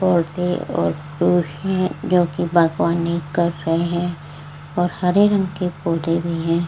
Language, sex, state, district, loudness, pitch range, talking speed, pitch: Hindi, female, Uttar Pradesh, Varanasi, -20 LUFS, 165-180 Hz, 150 wpm, 170 Hz